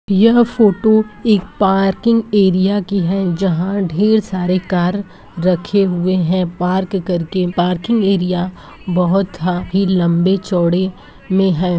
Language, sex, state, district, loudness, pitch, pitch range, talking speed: Bhojpuri, male, Uttar Pradesh, Gorakhpur, -15 LUFS, 190 Hz, 180-200 Hz, 115 wpm